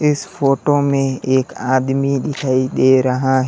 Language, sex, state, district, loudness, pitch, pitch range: Hindi, male, Uttar Pradesh, Lalitpur, -16 LUFS, 135 Hz, 130-140 Hz